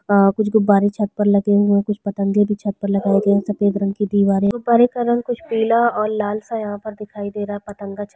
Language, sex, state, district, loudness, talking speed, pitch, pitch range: Hindi, female, Chhattisgarh, Sukma, -18 LUFS, 255 wpm, 205 Hz, 200-215 Hz